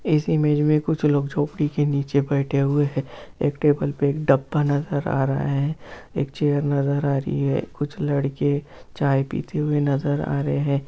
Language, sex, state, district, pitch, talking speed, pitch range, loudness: Hindi, male, Bihar, Jamui, 145 Hz, 180 wpm, 140-150 Hz, -22 LUFS